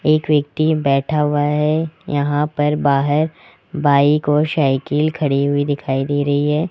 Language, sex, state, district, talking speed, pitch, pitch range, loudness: Hindi, male, Rajasthan, Jaipur, 150 wpm, 150 Hz, 145-155 Hz, -17 LUFS